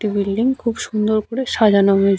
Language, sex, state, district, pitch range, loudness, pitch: Bengali, female, West Bengal, Paschim Medinipur, 200-230 Hz, -18 LUFS, 215 Hz